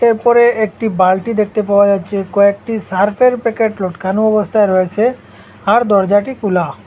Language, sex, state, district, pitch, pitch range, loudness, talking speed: Bengali, male, Assam, Hailakandi, 210 Hz, 195-225 Hz, -14 LUFS, 130 wpm